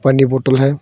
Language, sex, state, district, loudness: Hindi, female, Arunachal Pradesh, Longding, -14 LUFS